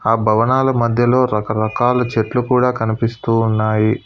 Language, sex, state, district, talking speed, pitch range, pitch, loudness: Telugu, male, Telangana, Hyderabad, 120 wpm, 110-125 Hz, 115 Hz, -16 LUFS